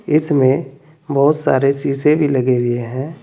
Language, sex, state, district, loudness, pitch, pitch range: Hindi, male, Uttar Pradesh, Saharanpur, -16 LUFS, 140 Hz, 130-150 Hz